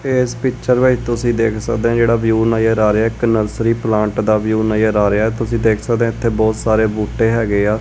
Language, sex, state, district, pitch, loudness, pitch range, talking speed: Punjabi, male, Punjab, Kapurthala, 115 Hz, -16 LUFS, 110-115 Hz, 245 wpm